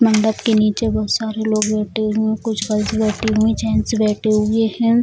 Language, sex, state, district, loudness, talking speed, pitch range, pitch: Hindi, female, Bihar, Bhagalpur, -18 LUFS, 225 wpm, 215-225 Hz, 220 Hz